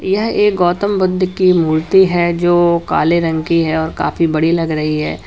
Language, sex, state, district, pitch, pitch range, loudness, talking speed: Hindi, male, Uttar Pradesh, Lalitpur, 170 Hz, 160-185 Hz, -14 LUFS, 205 wpm